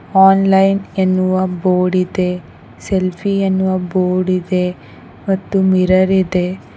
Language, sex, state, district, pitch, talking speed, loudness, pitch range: Kannada, female, Karnataka, Koppal, 185 Hz, 95 wpm, -15 LUFS, 180-190 Hz